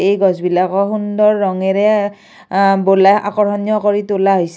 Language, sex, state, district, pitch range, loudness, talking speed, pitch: Assamese, female, Assam, Kamrup Metropolitan, 195-210 Hz, -14 LUFS, 130 wpm, 200 Hz